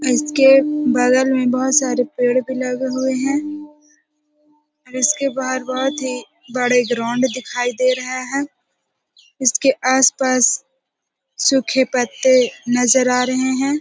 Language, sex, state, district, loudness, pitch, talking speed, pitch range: Hindi, female, Bihar, Jahanabad, -17 LUFS, 260 Hz, 125 wpm, 255-275 Hz